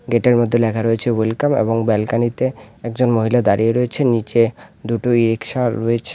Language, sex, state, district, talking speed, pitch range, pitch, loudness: Bengali, male, West Bengal, Alipurduar, 165 wpm, 115-125 Hz, 115 Hz, -17 LUFS